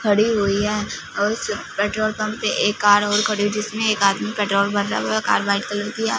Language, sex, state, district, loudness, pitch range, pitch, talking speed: Hindi, female, Punjab, Fazilka, -20 LUFS, 200-215 Hz, 205 Hz, 230 wpm